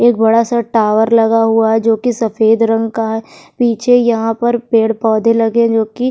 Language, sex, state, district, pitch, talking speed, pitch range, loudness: Hindi, female, Bihar, Kishanganj, 225 Hz, 205 wpm, 225-235 Hz, -13 LUFS